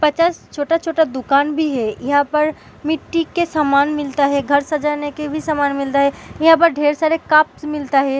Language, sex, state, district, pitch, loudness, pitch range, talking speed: Hindi, female, Uttar Pradesh, Budaun, 300 Hz, -17 LUFS, 280-315 Hz, 190 wpm